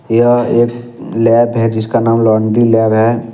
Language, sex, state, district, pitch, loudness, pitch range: Hindi, male, Jharkhand, Ranchi, 115 Hz, -12 LUFS, 115-120 Hz